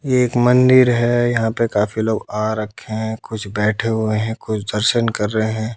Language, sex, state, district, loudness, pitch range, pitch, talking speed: Hindi, male, Haryana, Jhajjar, -18 LUFS, 110-120 Hz, 110 Hz, 185 wpm